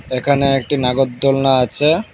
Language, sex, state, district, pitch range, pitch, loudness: Bengali, male, West Bengal, Alipurduar, 130-140 Hz, 135 Hz, -15 LUFS